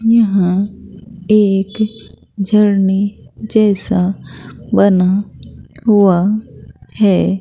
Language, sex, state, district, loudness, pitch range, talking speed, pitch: Hindi, female, Bihar, Katihar, -14 LUFS, 195-210 Hz, 55 wpm, 200 Hz